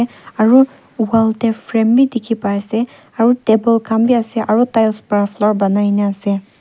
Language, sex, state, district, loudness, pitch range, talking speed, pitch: Nagamese, female, Nagaland, Kohima, -15 LUFS, 210-235 Hz, 165 wpm, 225 Hz